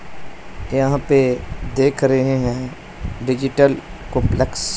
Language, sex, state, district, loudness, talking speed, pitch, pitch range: Hindi, male, Punjab, Pathankot, -19 LUFS, 100 wpm, 130 Hz, 120-135 Hz